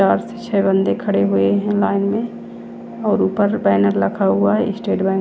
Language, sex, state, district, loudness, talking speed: Hindi, female, Chandigarh, Chandigarh, -17 LUFS, 205 wpm